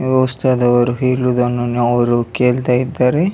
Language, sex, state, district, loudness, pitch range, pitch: Kannada, male, Karnataka, Dakshina Kannada, -15 LUFS, 120-130 Hz, 125 Hz